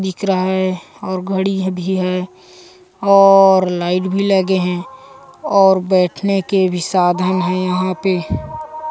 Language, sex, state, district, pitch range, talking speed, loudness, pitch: Hindi, female, Chhattisgarh, Kabirdham, 185-195 Hz, 120 wpm, -16 LUFS, 190 Hz